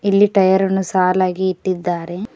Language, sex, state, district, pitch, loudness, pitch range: Kannada, female, Karnataka, Koppal, 190 Hz, -17 LUFS, 185-195 Hz